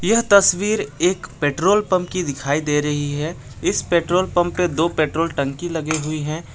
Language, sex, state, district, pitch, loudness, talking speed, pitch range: Hindi, male, Jharkhand, Garhwa, 165 Hz, -19 LUFS, 185 wpm, 150-180 Hz